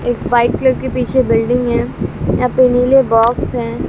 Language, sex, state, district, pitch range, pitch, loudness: Hindi, female, Bihar, West Champaran, 235-255 Hz, 245 Hz, -14 LUFS